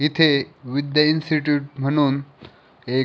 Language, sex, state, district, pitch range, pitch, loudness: Marathi, male, Maharashtra, Pune, 140-150 Hz, 145 Hz, -20 LUFS